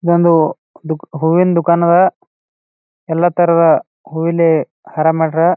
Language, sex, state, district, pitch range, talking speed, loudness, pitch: Kannada, male, Karnataka, Bijapur, 160-170 Hz, 110 wpm, -14 LUFS, 165 Hz